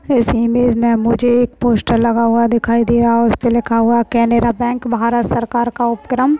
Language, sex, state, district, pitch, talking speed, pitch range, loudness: Hindi, male, Maharashtra, Nagpur, 235 Hz, 215 wpm, 235-240 Hz, -14 LUFS